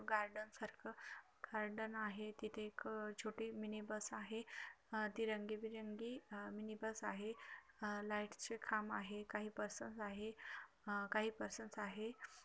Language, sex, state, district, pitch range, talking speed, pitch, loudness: Marathi, female, Maharashtra, Chandrapur, 210-220 Hz, 135 wpm, 215 Hz, -47 LUFS